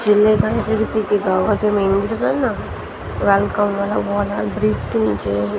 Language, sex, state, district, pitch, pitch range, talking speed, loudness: Hindi, female, Maharashtra, Gondia, 200 Hz, 185-210 Hz, 215 wpm, -18 LUFS